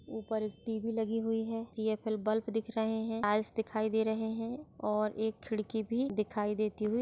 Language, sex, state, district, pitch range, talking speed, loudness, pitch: Hindi, female, Maharashtra, Nagpur, 215-225 Hz, 195 wpm, -34 LUFS, 220 Hz